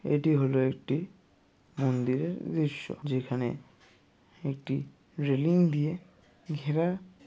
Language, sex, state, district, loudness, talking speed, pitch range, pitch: Bengali, male, West Bengal, Jalpaiguri, -30 LUFS, 90 wpm, 135-165 Hz, 145 Hz